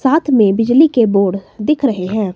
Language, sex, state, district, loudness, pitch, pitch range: Hindi, female, Himachal Pradesh, Shimla, -13 LUFS, 225 Hz, 200-275 Hz